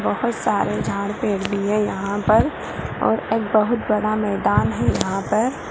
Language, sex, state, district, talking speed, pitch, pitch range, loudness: Hindi, female, Bihar, Purnia, 170 wpm, 210 Hz, 200-220 Hz, -21 LUFS